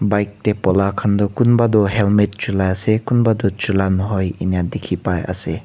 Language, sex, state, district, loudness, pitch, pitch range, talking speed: Nagamese, male, Nagaland, Kohima, -17 LUFS, 100 Hz, 95-110 Hz, 180 wpm